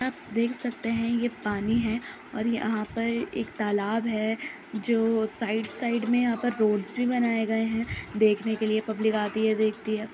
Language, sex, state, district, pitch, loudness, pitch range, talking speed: Hindi, female, Uttar Pradesh, Jyotiba Phule Nagar, 225 Hz, -27 LUFS, 215-235 Hz, 185 wpm